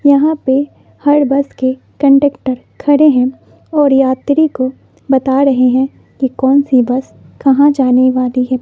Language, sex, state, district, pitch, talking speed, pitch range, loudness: Hindi, female, Bihar, West Champaran, 270 Hz, 155 wpm, 255-285 Hz, -12 LUFS